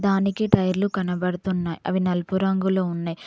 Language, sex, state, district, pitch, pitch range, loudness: Telugu, female, Telangana, Mahabubabad, 185 Hz, 180-195 Hz, -23 LUFS